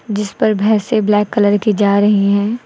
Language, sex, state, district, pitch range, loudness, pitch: Hindi, female, Uttar Pradesh, Lucknow, 205-215 Hz, -14 LUFS, 210 Hz